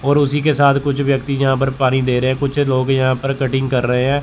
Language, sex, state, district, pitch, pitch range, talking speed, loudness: Hindi, male, Chandigarh, Chandigarh, 135 Hz, 130-140 Hz, 285 wpm, -16 LUFS